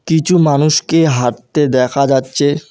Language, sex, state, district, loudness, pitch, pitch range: Bengali, male, West Bengal, Alipurduar, -13 LUFS, 145 Hz, 130-155 Hz